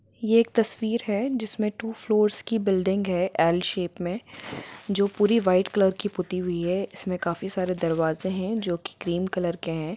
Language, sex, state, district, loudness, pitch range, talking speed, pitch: Hindi, female, Jharkhand, Jamtara, -25 LUFS, 180-210 Hz, 190 wpm, 190 Hz